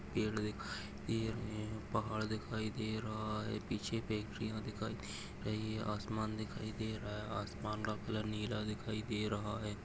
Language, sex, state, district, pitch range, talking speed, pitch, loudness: Hindi, male, Maharashtra, Dhule, 105-110 Hz, 175 wpm, 110 Hz, -41 LUFS